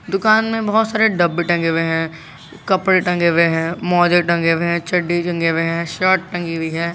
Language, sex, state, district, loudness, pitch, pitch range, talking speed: Hindi, male, Jharkhand, Garhwa, -17 LUFS, 175 Hz, 165-185 Hz, 180 wpm